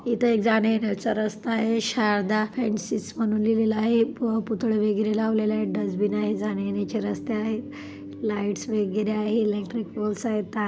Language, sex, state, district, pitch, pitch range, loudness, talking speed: Marathi, female, Maharashtra, Chandrapur, 215 Hz, 210-225 Hz, -25 LUFS, 165 wpm